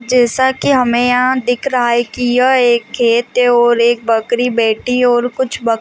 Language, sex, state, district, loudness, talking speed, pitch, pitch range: Hindi, female, Chhattisgarh, Balrampur, -13 LUFS, 215 wpm, 245 Hz, 235-250 Hz